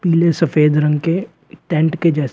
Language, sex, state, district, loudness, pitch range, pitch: Hindi, male, Uttar Pradesh, Shamli, -16 LUFS, 150-170 Hz, 165 Hz